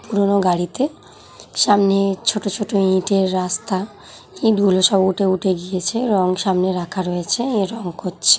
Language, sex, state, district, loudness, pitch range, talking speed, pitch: Bengali, female, West Bengal, Jhargram, -18 LUFS, 185-205 Hz, 145 wpm, 195 Hz